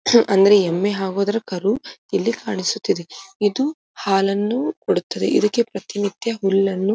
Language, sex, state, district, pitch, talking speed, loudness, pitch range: Kannada, female, Karnataka, Dharwad, 200 Hz, 120 wpm, -20 LUFS, 195-220 Hz